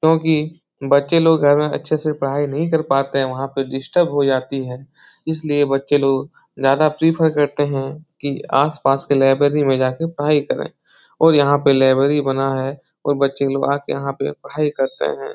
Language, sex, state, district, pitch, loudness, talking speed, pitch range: Hindi, male, Bihar, Jahanabad, 140 Hz, -18 LUFS, 195 wpm, 135-150 Hz